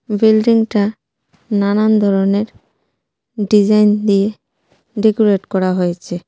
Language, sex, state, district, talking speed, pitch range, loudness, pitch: Bengali, female, Tripura, West Tripura, 75 wpm, 195-215 Hz, -15 LUFS, 205 Hz